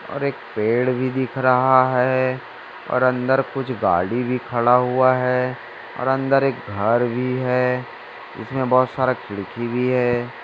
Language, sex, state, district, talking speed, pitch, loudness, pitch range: Hindi, male, Maharashtra, Dhule, 145 wpm, 125 Hz, -20 LUFS, 120-130 Hz